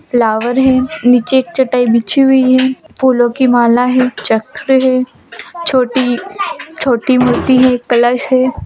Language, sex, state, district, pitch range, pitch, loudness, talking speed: Hindi, female, Bihar, Madhepura, 245-260 Hz, 255 Hz, -12 LUFS, 140 wpm